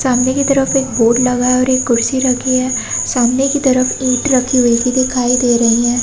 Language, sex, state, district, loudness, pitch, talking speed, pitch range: Hindi, female, Chhattisgarh, Raigarh, -13 LUFS, 255 Hz, 230 wpm, 245-260 Hz